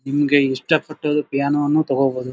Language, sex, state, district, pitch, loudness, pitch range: Kannada, male, Karnataka, Dharwad, 145 Hz, -19 LUFS, 135-150 Hz